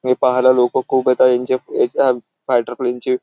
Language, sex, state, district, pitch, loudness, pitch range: Marathi, male, Maharashtra, Nagpur, 125 Hz, -16 LUFS, 125-130 Hz